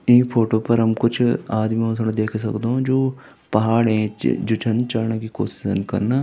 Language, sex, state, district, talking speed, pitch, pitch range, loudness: Hindi, male, Uttarakhand, Tehri Garhwal, 185 wpm, 115 Hz, 110-120 Hz, -20 LUFS